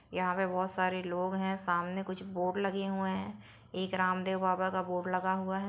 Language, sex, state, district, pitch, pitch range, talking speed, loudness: Hindi, female, Bihar, Saran, 185 Hz, 180-190 Hz, 220 wpm, -33 LUFS